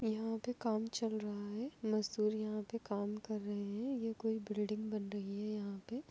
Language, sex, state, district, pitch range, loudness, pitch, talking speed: Hindi, female, Uttar Pradesh, Etah, 210-225 Hz, -40 LUFS, 215 Hz, 215 wpm